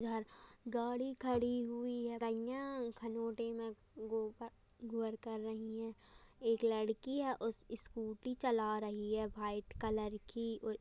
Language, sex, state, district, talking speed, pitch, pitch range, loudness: Hindi, female, Uttar Pradesh, Jyotiba Phule Nagar, 130 wpm, 230 Hz, 220-240 Hz, -41 LUFS